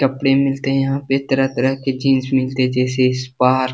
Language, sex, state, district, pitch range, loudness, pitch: Hindi, male, Bihar, Jamui, 130-135 Hz, -17 LUFS, 135 Hz